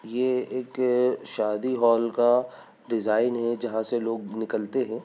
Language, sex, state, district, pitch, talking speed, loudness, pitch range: Bhojpuri, male, Bihar, Saran, 120 Hz, 145 wpm, -25 LUFS, 110-125 Hz